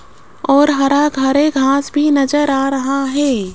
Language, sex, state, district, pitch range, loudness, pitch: Hindi, female, Rajasthan, Jaipur, 270-290 Hz, -14 LUFS, 275 Hz